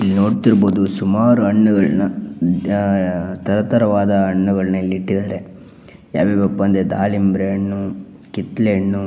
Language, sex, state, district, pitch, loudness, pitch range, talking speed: Kannada, male, Karnataka, Shimoga, 100 Hz, -17 LUFS, 95-100 Hz, 100 wpm